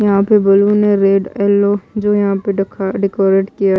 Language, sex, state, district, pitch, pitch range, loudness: Hindi, female, Odisha, Malkangiri, 200 Hz, 195-205 Hz, -14 LUFS